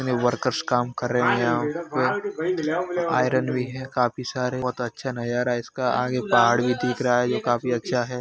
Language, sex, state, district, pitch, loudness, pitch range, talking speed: Hindi, male, Uttar Pradesh, Hamirpur, 125 Hz, -24 LUFS, 120-130 Hz, 195 wpm